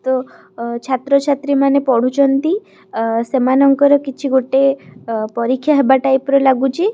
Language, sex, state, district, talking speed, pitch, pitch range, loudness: Odia, female, Odisha, Khordha, 130 wpm, 270 Hz, 255-280 Hz, -15 LUFS